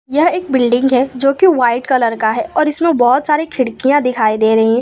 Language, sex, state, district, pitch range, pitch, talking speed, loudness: Hindi, female, Gujarat, Valsad, 240-300 Hz, 260 Hz, 235 wpm, -13 LUFS